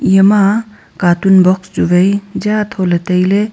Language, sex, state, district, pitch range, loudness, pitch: Wancho, female, Arunachal Pradesh, Longding, 185-205 Hz, -12 LUFS, 195 Hz